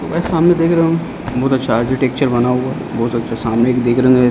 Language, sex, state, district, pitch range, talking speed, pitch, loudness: Hindi, male, Uttar Pradesh, Ghazipur, 120-145 Hz, 180 wpm, 130 Hz, -15 LUFS